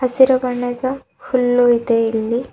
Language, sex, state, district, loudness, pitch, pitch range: Kannada, female, Karnataka, Bidar, -17 LUFS, 245 Hz, 240-255 Hz